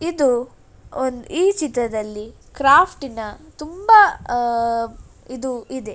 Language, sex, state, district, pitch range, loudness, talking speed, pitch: Kannada, female, Karnataka, Dakshina Kannada, 230-305 Hz, -18 LUFS, 90 wpm, 255 Hz